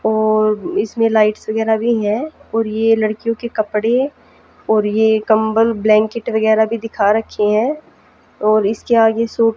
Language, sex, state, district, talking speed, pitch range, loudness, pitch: Hindi, female, Haryana, Jhajjar, 150 wpm, 215-230 Hz, -16 LUFS, 220 Hz